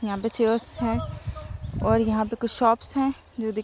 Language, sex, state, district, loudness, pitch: Hindi, female, Jharkhand, Sahebganj, -25 LUFS, 220 Hz